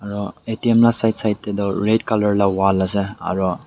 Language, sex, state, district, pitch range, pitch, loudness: Nagamese, male, Nagaland, Dimapur, 100-110 Hz, 105 Hz, -19 LUFS